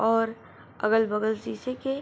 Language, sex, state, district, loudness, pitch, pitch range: Hindi, female, Bihar, Begusarai, -27 LUFS, 225 Hz, 220-255 Hz